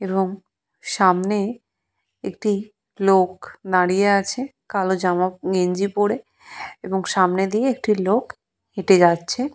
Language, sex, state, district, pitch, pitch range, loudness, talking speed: Bengali, female, West Bengal, Purulia, 195 Hz, 185-210 Hz, -20 LUFS, 105 wpm